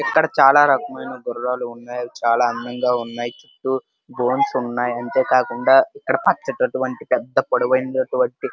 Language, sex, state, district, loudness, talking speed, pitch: Telugu, male, Andhra Pradesh, Srikakulam, -19 LUFS, 120 wpm, 125 Hz